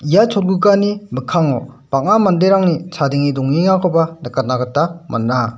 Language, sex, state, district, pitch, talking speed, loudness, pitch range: Garo, male, Meghalaya, West Garo Hills, 165 Hz, 105 wpm, -16 LUFS, 135-190 Hz